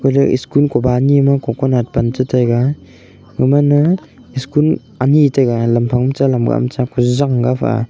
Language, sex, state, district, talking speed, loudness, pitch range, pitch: Wancho, male, Arunachal Pradesh, Longding, 150 wpm, -14 LUFS, 120-140 Hz, 130 Hz